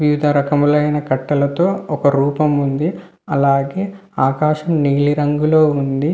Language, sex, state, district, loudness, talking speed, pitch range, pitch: Telugu, male, Andhra Pradesh, Visakhapatnam, -16 LUFS, 95 wpm, 140-155 Hz, 150 Hz